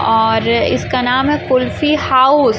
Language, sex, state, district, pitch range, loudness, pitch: Hindi, male, Chhattisgarh, Raipur, 235-290 Hz, -13 LUFS, 260 Hz